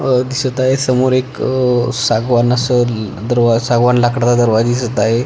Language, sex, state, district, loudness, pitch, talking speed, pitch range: Marathi, male, Maharashtra, Pune, -14 LUFS, 120 Hz, 160 wpm, 120-130 Hz